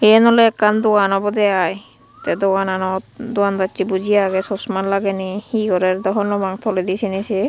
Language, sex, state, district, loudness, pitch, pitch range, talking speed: Chakma, female, Tripura, Unakoti, -18 LUFS, 195 Hz, 190-210 Hz, 175 wpm